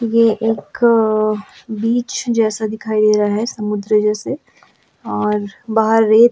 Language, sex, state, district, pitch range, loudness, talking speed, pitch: Hindi, female, Goa, North and South Goa, 215-230 Hz, -17 LUFS, 135 wpm, 220 Hz